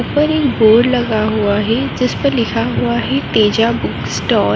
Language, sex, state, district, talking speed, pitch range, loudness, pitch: Hindi, female, Uttarakhand, Uttarkashi, 185 wpm, 205-250 Hz, -14 LUFS, 225 Hz